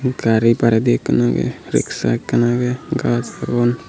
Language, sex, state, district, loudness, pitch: Chakma, male, Tripura, Unakoti, -18 LUFS, 115 Hz